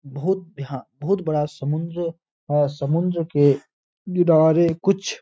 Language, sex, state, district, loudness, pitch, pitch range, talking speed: Hindi, male, Uttar Pradesh, Etah, -21 LUFS, 160 Hz, 145-175 Hz, 125 wpm